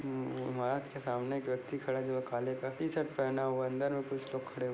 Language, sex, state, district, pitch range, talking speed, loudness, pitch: Hindi, male, Maharashtra, Dhule, 130-135 Hz, 215 wpm, -36 LUFS, 130 Hz